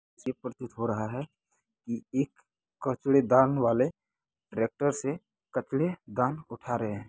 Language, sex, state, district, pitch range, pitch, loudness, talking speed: Hindi, male, Bihar, Muzaffarpur, 120-145 Hz, 130 Hz, -30 LUFS, 135 wpm